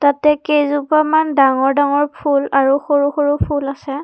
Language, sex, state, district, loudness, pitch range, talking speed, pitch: Assamese, female, Assam, Kamrup Metropolitan, -15 LUFS, 275-295 Hz, 150 wpm, 285 Hz